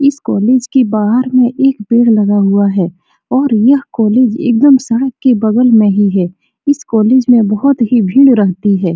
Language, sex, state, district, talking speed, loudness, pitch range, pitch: Hindi, female, Bihar, Supaul, 195 wpm, -11 LUFS, 205-260 Hz, 235 Hz